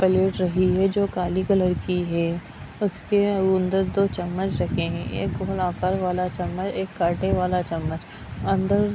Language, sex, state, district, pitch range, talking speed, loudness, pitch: Hindi, female, Bihar, Darbhanga, 175-190 Hz, 170 wpm, -24 LUFS, 185 Hz